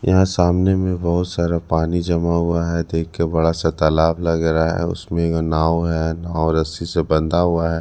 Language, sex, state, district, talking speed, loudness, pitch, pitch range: Hindi, male, Punjab, Kapurthala, 200 wpm, -19 LUFS, 85 Hz, 80-85 Hz